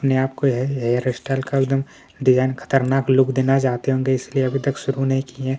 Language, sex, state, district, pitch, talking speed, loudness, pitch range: Hindi, male, Chhattisgarh, Kabirdham, 135 Hz, 215 wpm, -20 LUFS, 130-135 Hz